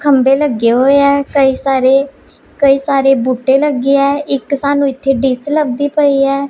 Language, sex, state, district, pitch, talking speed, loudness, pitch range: Punjabi, female, Punjab, Pathankot, 275 Hz, 165 wpm, -12 LUFS, 265-280 Hz